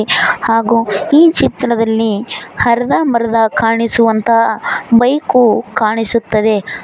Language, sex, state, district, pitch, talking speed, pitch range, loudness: Kannada, female, Karnataka, Koppal, 230 Hz, 60 wpm, 225-235 Hz, -12 LUFS